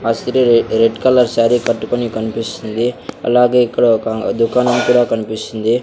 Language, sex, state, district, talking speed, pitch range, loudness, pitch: Telugu, male, Andhra Pradesh, Sri Satya Sai, 125 wpm, 115-125 Hz, -15 LUFS, 115 Hz